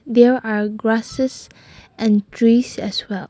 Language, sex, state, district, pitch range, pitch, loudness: English, female, Nagaland, Kohima, 210-240 Hz, 225 Hz, -18 LUFS